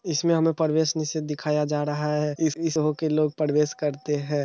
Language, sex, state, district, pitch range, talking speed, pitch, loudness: Hindi, male, Bihar, Araria, 150-160 Hz, 200 wpm, 150 Hz, -25 LUFS